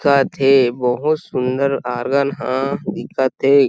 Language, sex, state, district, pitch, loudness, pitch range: Chhattisgarhi, male, Chhattisgarh, Sarguja, 135 Hz, -18 LUFS, 130-140 Hz